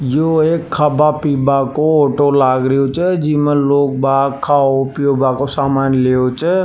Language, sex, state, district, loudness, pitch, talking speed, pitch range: Rajasthani, male, Rajasthan, Nagaur, -14 LUFS, 140 Hz, 170 wpm, 135-150 Hz